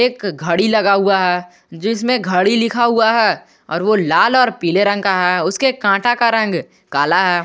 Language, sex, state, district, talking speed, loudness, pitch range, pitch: Hindi, male, Jharkhand, Garhwa, 195 wpm, -15 LUFS, 180-230 Hz, 200 Hz